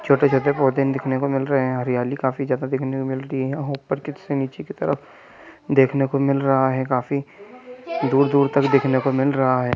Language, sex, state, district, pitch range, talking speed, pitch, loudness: Hindi, male, Jharkhand, Sahebganj, 130-140 Hz, 210 wpm, 135 Hz, -21 LUFS